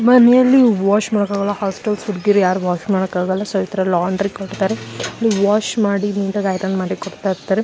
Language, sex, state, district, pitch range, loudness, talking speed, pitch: Kannada, female, Karnataka, Shimoga, 190-210 Hz, -17 LUFS, 165 wpm, 200 Hz